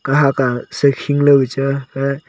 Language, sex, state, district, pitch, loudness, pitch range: Wancho, male, Arunachal Pradesh, Longding, 140 Hz, -16 LUFS, 135-140 Hz